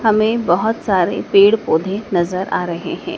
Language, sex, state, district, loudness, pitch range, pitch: Hindi, female, Madhya Pradesh, Dhar, -16 LUFS, 175-220 Hz, 200 Hz